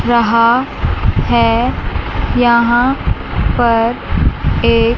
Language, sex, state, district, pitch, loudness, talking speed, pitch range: Hindi, female, Chandigarh, Chandigarh, 235 Hz, -14 LUFS, 60 wpm, 230-240 Hz